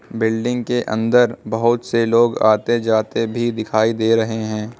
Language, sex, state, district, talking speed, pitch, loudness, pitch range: Hindi, male, Uttar Pradesh, Lucknow, 160 wpm, 115 Hz, -18 LUFS, 110-120 Hz